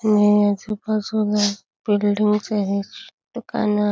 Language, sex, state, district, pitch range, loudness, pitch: Marathi, female, Karnataka, Belgaum, 205-210 Hz, -20 LUFS, 210 Hz